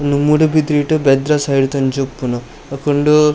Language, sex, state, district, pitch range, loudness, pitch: Tulu, male, Karnataka, Dakshina Kannada, 135-150 Hz, -15 LUFS, 145 Hz